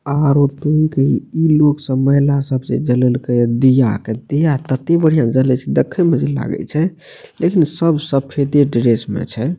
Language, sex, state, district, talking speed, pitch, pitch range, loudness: Maithili, male, Bihar, Madhepura, 195 wpm, 140 Hz, 130-155 Hz, -15 LUFS